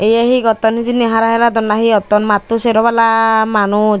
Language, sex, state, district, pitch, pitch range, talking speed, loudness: Chakma, female, Tripura, Dhalai, 225 Hz, 215-230 Hz, 195 wpm, -12 LUFS